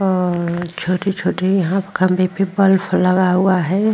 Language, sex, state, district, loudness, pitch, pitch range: Hindi, female, Uttar Pradesh, Muzaffarnagar, -17 LUFS, 185 Hz, 180-195 Hz